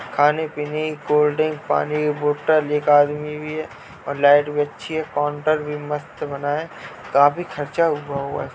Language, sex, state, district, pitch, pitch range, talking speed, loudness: Hindi, male, Uttar Pradesh, Jalaun, 150 Hz, 145-155 Hz, 180 wpm, -21 LUFS